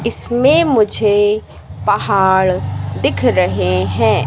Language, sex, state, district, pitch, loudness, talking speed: Hindi, female, Madhya Pradesh, Katni, 200 Hz, -14 LUFS, 85 wpm